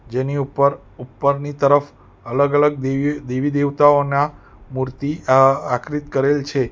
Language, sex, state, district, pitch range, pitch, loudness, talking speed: Gujarati, male, Gujarat, Valsad, 130-145 Hz, 140 Hz, -18 LUFS, 125 wpm